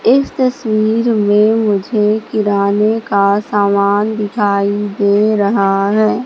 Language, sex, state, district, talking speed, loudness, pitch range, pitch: Hindi, female, Madhya Pradesh, Katni, 105 wpm, -13 LUFS, 200-220 Hz, 210 Hz